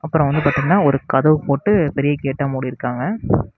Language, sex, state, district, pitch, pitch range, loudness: Tamil, male, Tamil Nadu, Namakkal, 140 Hz, 135-155 Hz, -18 LUFS